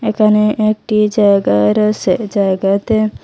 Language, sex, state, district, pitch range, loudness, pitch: Bengali, female, Assam, Hailakandi, 200-215 Hz, -13 LUFS, 210 Hz